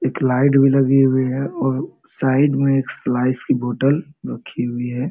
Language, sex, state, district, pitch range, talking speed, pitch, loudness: Hindi, male, Jharkhand, Sahebganj, 130-140 Hz, 190 wpm, 135 Hz, -18 LUFS